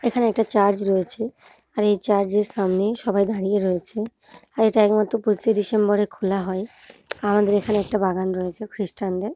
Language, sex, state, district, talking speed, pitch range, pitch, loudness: Bengali, female, West Bengal, Jhargram, 155 wpm, 195-215 Hz, 205 Hz, -21 LUFS